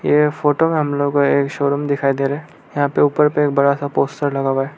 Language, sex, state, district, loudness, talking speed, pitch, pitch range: Hindi, male, Arunachal Pradesh, Lower Dibang Valley, -17 LUFS, 290 wpm, 145 Hz, 140-150 Hz